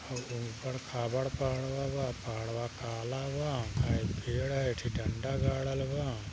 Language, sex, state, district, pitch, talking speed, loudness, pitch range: Hindi, male, Uttar Pradesh, Gorakhpur, 125 Hz, 150 wpm, -35 LUFS, 115-135 Hz